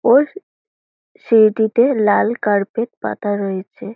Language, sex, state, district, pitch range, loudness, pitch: Bengali, female, West Bengal, Kolkata, 205-240 Hz, -17 LUFS, 220 Hz